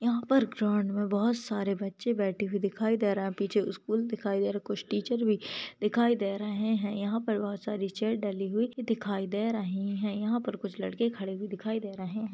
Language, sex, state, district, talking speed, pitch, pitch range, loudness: Hindi, female, Maharashtra, Chandrapur, 225 wpm, 210 Hz, 200-220 Hz, -31 LUFS